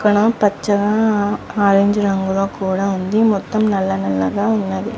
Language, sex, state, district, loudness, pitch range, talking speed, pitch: Telugu, female, Andhra Pradesh, Chittoor, -17 LUFS, 195-210 Hz, 145 wpm, 205 Hz